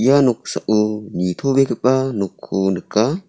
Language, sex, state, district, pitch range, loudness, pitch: Garo, male, Meghalaya, South Garo Hills, 100-130 Hz, -19 LUFS, 110 Hz